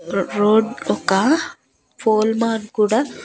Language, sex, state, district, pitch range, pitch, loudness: Telugu, female, Andhra Pradesh, Annamaya, 210-230 Hz, 220 Hz, -18 LUFS